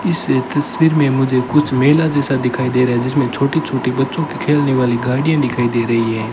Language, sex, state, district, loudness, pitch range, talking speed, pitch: Hindi, male, Rajasthan, Bikaner, -16 LUFS, 125-150 Hz, 220 wpm, 135 Hz